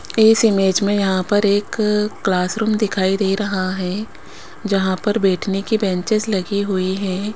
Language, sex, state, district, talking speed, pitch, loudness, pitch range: Hindi, female, Rajasthan, Jaipur, 155 wpm, 200 Hz, -18 LUFS, 190-210 Hz